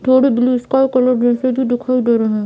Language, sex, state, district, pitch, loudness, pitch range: Hindi, female, Bihar, Purnia, 250 Hz, -15 LUFS, 240-255 Hz